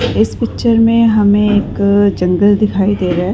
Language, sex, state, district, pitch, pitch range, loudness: Hindi, female, Chhattisgarh, Rajnandgaon, 205 Hz, 195-210 Hz, -12 LUFS